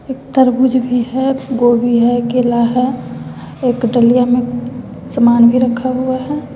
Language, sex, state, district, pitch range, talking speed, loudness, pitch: Hindi, female, Bihar, West Champaran, 240-255 Hz, 145 wpm, -14 LUFS, 250 Hz